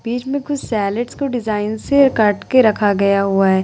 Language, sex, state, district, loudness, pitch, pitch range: Hindi, female, Bihar, Vaishali, -16 LUFS, 220 Hz, 200-260 Hz